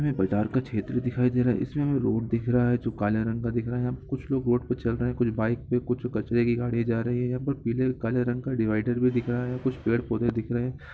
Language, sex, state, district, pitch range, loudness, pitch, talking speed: Hindi, male, Bihar, Gopalganj, 115-125 Hz, -27 LUFS, 120 Hz, 315 wpm